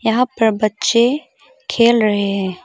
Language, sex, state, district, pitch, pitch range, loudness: Hindi, female, Arunachal Pradesh, Longding, 225 Hz, 210-250 Hz, -16 LUFS